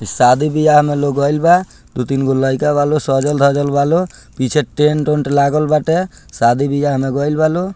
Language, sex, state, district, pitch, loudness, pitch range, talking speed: Bhojpuri, male, Bihar, Muzaffarpur, 145 Hz, -14 LUFS, 135-150 Hz, 195 wpm